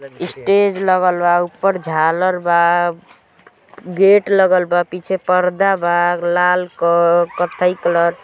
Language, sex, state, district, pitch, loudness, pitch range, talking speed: Bhojpuri, female, Uttar Pradesh, Gorakhpur, 180 Hz, -15 LUFS, 175-185 Hz, 125 wpm